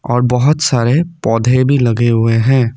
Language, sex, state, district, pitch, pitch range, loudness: Hindi, male, Assam, Kamrup Metropolitan, 125 Hz, 115-135 Hz, -13 LUFS